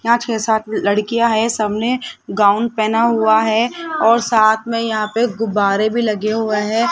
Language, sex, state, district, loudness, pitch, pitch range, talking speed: Hindi, male, Rajasthan, Jaipur, -16 LUFS, 225 Hz, 215-235 Hz, 175 wpm